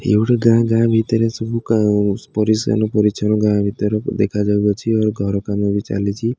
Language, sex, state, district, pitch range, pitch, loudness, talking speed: Odia, male, Odisha, Khordha, 105-115 Hz, 105 Hz, -17 LUFS, 170 wpm